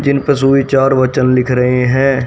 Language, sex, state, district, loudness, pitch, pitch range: Hindi, male, Haryana, Rohtak, -12 LUFS, 135 Hz, 130-135 Hz